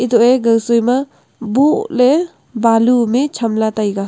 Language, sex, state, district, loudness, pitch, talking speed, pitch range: Wancho, female, Arunachal Pradesh, Longding, -14 LUFS, 235 Hz, 145 wpm, 225-255 Hz